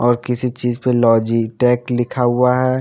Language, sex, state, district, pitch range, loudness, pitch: Hindi, female, Haryana, Charkhi Dadri, 120-125 Hz, -17 LUFS, 120 Hz